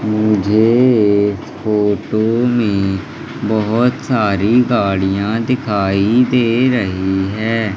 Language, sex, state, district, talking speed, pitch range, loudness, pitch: Hindi, male, Madhya Pradesh, Katni, 85 wpm, 100-120 Hz, -15 LUFS, 110 Hz